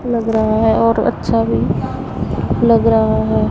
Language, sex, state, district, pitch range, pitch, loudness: Hindi, female, Punjab, Pathankot, 220-230 Hz, 225 Hz, -15 LUFS